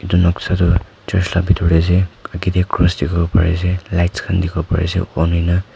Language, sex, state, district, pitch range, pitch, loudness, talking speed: Nagamese, male, Nagaland, Kohima, 85-90 Hz, 90 Hz, -17 LUFS, 230 wpm